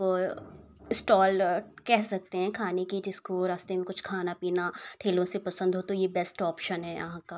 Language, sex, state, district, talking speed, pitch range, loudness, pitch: Hindi, female, Uttar Pradesh, Ghazipur, 195 wpm, 180-195 Hz, -30 LUFS, 185 Hz